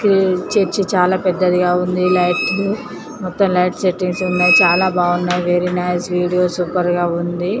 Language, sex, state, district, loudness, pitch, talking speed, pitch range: Telugu, female, Andhra Pradesh, Chittoor, -16 LUFS, 180 Hz, 140 wpm, 180-185 Hz